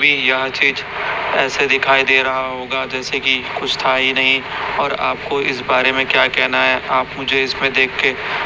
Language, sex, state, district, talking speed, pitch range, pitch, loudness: Hindi, male, Chhattisgarh, Raipur, 190 wpm, 130-135 Hz, 130 Hz, -15 LUFS